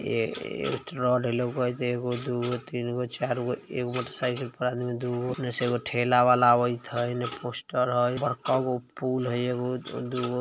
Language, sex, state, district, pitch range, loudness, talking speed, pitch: Hindi, female, Bihar, Vaishali, 120-125 Hz, -28 LUFS, 160 wpm, 125 Hz